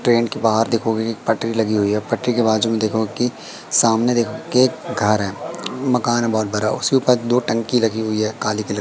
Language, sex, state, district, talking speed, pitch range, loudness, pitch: Hindi, male, Madhya Pradesh, Katni, 230 wpm, 110-120 Hz, -19 LUFS, 115 Hz